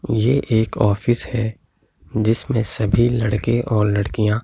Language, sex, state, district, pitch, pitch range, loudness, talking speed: Hindi, male, Delhi, New Delhi, 110 Hz, 105-120 Hz, -19 LUFS, 120 wpm